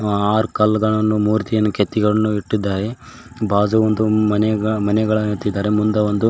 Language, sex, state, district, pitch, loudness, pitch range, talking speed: Kannada, male, Karnataka, Koppal, 105 Hz, -18 LUFS, 105-110 Hz, 115 wpm